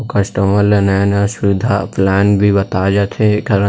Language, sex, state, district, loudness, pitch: Chhattisgarhi, male, Chhattisgarh, Rajnandgaon, -14 LUFS, 100 Hz